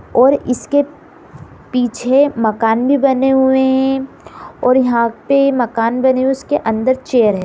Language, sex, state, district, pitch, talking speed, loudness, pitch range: Hindi, female, Bihar, Kishanganj, 260 Hz, 145 wpm, -14 LUFS, 235-270 Hz